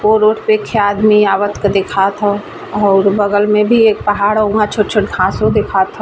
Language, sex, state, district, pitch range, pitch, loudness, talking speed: Bhojpuri, female, Bihar, East Champaran, 205-215 Hz, 210 Hz, -13 LUFS, 200 wpm